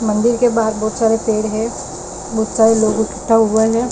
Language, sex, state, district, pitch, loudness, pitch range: Hindi, female, Maharashtra, Mumbai Suburban, 220 Hz, -16 LUFS, 220-225 Hz